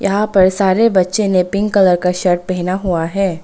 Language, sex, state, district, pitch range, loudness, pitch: Hindi, female, Arunachal Pradesh, Longding, 180-200 Hz, -14 LUFS, 185 Hz